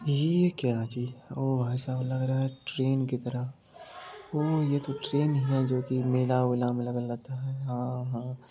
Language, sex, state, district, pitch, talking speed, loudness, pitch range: Hindi, male, Bihar, Supaul, 130 Hz, 170 wpm, -29 LUFS, 125-135 Hz